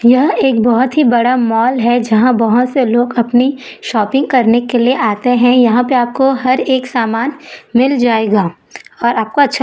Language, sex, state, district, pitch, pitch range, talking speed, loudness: Hindi, female, Chhattisgarh, Raipur, 245 Hz, 235-260 Hz, 180 wpm, -12 LUFS